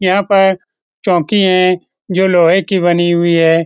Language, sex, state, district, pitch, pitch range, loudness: Hindi, male, Bihar, Lakhisarai, 185 Hz, 175-190 Hz, -12 LUFS